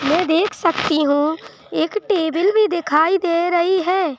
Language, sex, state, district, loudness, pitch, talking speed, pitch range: Hindi, female, Madhya Pradesh, Bhopal, -18 LUFS, 340 Hz, 160 wpm, 320-370 Hz